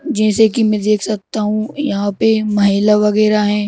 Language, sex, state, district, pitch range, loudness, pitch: Hindi, male, Madhya Pradesh, Bhopal, 210-220 Hz, -15 LUFS, 215 Hz